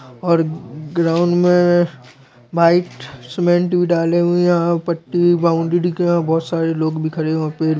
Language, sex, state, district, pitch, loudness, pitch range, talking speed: Hindi, male, Chhattisgarh, Raigarh, 170 Hz, -17 LUFS, 155-175 Hz, 175 wpm